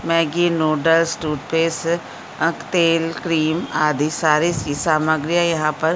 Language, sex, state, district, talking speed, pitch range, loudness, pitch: Hindi, female, Uttar Pradesh, Gorakhpur, 130 wpm, 155-170 Hz, -19 LUFS, 165 Hz